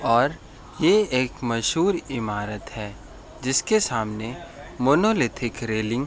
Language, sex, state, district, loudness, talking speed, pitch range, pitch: Hindi, male, Uttar Pradesh, Etah, -23 LUFS, 110 wpm, 110-140 Hz, 120 Hz